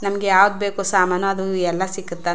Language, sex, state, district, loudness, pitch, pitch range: Kannada, female, Karnataka, Chamarajanagar, -19 LUFS, 190 Hz, 180-200 Hz